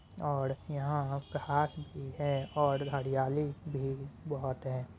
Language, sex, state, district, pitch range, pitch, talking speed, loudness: Hindi, male, Bihar, Muzaffarpur, 135-145 Hz, 140 Hz, 120 wpm, -35 LUFS